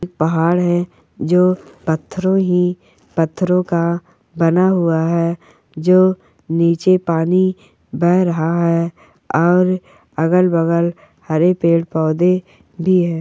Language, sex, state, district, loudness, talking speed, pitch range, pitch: Hindi, female, Andhra Pradesh, Anantapur, -16 LUFS, 100 wpm, 165-180 Hz, 170 Hz